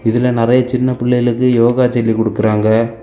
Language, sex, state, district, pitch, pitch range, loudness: Tamil, male, Tamil Nadu, Kanyakumari, 120 Hz, 115-125 Hz, -14 LUFS